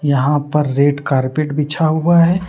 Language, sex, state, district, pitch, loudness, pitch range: Hindi, male, Jharkhand, Deoghar, 150 Hz, -15 LUFS, 140-160 Hz